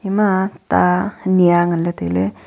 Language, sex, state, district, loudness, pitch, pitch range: Wancho, female, Arunachal Pradesh, Longding, -17 LUFS, 180 Hz, 170-190 Hz